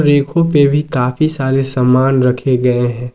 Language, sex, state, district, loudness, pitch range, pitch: Hindi, male, Jharkhand, Ranchi, -13 LUFS, 125-145 Hz, 130 Hz